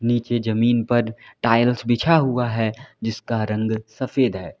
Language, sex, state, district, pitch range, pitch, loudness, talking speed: Hindi, male, Uttar Pradesh, Lalitpur, 110-125 Hz, 120 Hz, -21 LUFS, 145 wpm